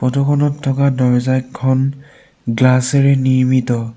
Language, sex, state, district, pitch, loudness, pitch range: Assamese, male, Assam, Sonitpur, 130 Hz, -15 LUFS, 125-140 Hz